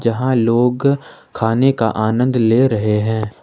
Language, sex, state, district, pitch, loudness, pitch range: Hindi, male, Jharkhand, Ranchi, 115 Hz, -16 LUFS, 110-125 Hz